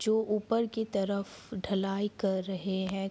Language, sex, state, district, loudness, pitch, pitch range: Hindi, female, Bihar, Araria, -32 LUFS, 200 Hz, 195-215 Hz